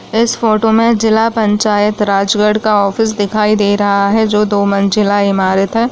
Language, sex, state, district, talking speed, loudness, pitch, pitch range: Hindi, female, Chhattisgarh, Raigarh, 170 wpm, -12 LUFS, 210 Hz, 200-220 Hz